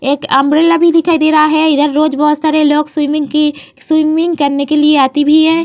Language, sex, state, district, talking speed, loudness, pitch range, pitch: Hindi, female, Uttar Pradesh, Varanasi, 225 wpm, -11 LUFS, 290-315 Hz, 300 Hz